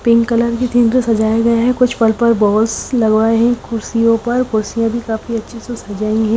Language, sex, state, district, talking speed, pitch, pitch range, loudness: Hindi, female, Haryana, Charkhi Dadri, 180 wpm, 230 Hz, 220-235 Hz, -15 LUFS